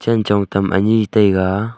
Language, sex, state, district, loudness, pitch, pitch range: Wancho, male, Arunachal Pradesh, Longding, -16 LUFS, 105 Hz, 95-110 Hz